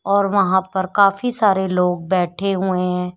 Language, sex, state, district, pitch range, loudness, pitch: Hindi, female, Uttar Pradesh, Shamli, 180-200 Hz, -17 LUFS, 190 Hz